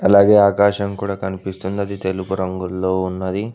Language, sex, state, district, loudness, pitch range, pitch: Telugu, male, Telangana, Mahabubabad, -18 LUFS, 95-100 Hz, 95 Hz